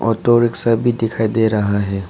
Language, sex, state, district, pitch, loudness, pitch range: Hindi, male, Arunachal Pradesh, Papum Pare, 115 Hz, -16 LUFS, 105-115 Hz